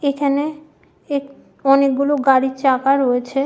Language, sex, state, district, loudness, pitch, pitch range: Bengali, female, West Bengal, Malda, -17 LUFS, 275 Hz, 265-280 Hz